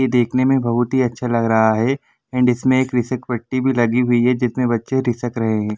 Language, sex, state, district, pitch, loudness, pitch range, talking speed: Hindi, male, Jharkhand, Jamtara, 125 Hz, -18 LUFS, 120-130 Hz, 220 wpm